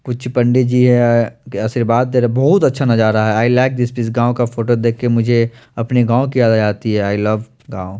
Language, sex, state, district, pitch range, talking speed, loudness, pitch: Hindi, male, Chandigarh, Chandigarh, 115-125 Hz, 230 wpm, -15 LUFS, 120 Hz